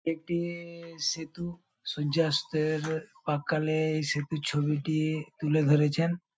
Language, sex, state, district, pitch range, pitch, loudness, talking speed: Bengali, male, West Bengal, Paschim Medinipur, 150-165 Hz, 155 Hz, -29 LUFS, 85 wpm